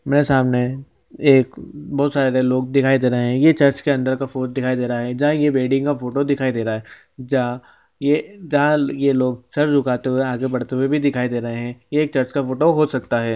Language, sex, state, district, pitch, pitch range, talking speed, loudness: Hindi, male, Chhattisgarh, Sukma, 130 Hz, 125-145 Hz, 240 wpm, -19 LUFS